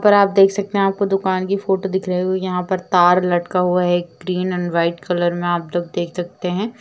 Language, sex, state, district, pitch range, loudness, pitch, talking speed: Hindi, female, Uttar Pradesh, Jalaun, 175-195 Hz, -18 LUFS, 180 Hz, 245 wpm